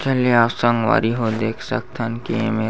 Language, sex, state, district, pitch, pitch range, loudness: Chhattisgarhi, male, Chhattisgarh, Bastar, 115 Hz, 115-125 Hz, -19 LUFS